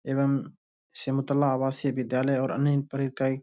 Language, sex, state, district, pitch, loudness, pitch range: Hindi, male, Bihar, Bhagalpur, 135 Hz, -27 LUFS, 135-140 Hz